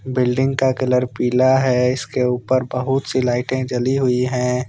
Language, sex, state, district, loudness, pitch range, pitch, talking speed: Hindi, male, Jharkhand, Deoghar, -18 LUFS, 125-130 Hz, 125 Hz, 165 wpm